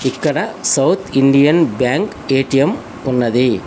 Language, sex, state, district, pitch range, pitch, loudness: Telugu, male, Telangana, Hyderabad, 125-140 Hz, 135 Hz, -15 LUFS